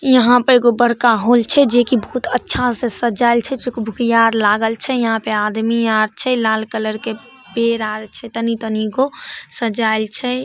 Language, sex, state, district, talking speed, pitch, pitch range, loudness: Maithili, female, Bihar, Samastipur, 185 wpm, 230 Hz, 220-245 Hz, -16 LUFS